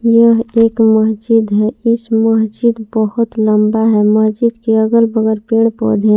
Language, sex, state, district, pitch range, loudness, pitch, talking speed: Hindi, female, Jharkhand, Palamu, 220-230 Hz, -13 LUFS, 225 Hz, 155 wpm